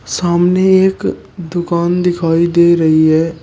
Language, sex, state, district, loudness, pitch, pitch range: Hindi, male, Uttar Pradesh, Shamli, -13 LUFS, 170 Hz, 165-180 Hz